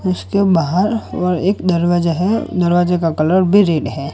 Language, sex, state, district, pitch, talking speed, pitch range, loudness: Hindi, male, Gujarat, Gandhinagar, 180 Hz, 175 wpm, 170-190 Hz, -15 LUFS